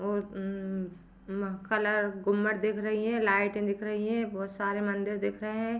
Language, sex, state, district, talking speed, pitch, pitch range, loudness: Hindi, female, Jharkhand, Sahebganj, 175 wpm, 205 Hz, 200-215 Hz, -31 LUFS